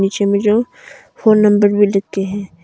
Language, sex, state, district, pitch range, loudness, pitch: Hindi, female, Arunachal Pradesh, Longding, 195-210 Hz, -14 LUFS, 200 Hz